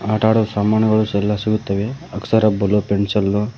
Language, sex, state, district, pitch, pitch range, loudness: Kannada, male, Karnataka, Koppal, 105 Hz, 100-110 Hz, -18 LUFS